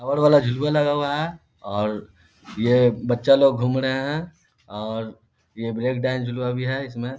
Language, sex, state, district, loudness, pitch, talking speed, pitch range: Hindi, male, Bihar, Darbhanga, -22 LUFS, 125 Hz, 175 wpm, 115-140 Hz